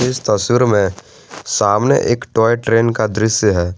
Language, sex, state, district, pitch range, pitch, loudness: Hindi, male, Jharkhand, Garhwa, 105-115 Hz, 110 Hz, -15 LUFS